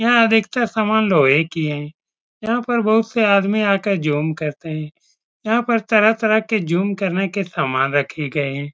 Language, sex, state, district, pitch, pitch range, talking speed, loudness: Hindi, male, Uttar Pradesh, Etah, 200 Hz, 155-220 Hz, 170 wpm, -18 LUFS